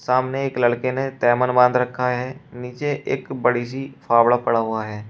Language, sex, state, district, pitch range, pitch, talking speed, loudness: Hindi, male, Uttar Pradesh, Shamli, 120-130 Hz, 125 Hz, 190 wpm, -20 LUFS